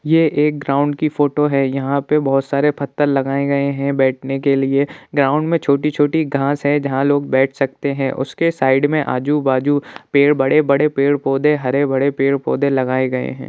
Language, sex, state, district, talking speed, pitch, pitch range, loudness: Hindi, male, Bihar, Jahanabad, 175 wpm, 140 Hz, 135-145 Hz, -17 LUFS